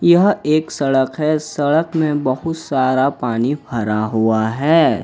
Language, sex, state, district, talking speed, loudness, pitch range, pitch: Hindi, male, Jharkhand, Ranchi, 145 wpm, -17 LUFS, 130-155 Hz, 145 Hz